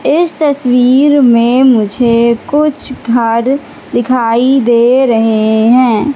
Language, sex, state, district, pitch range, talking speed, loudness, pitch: Hindi, female, Madhya Pradesh, Katni, 235-275 Hz, 95 wpm, -10 LUFS, 250 Hz